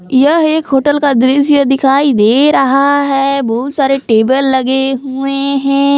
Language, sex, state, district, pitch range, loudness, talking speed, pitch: Hindi, female, Jharkhand, Palamu, 265-280 Hz, -11 LUFS, 150 wpm, 275 Hz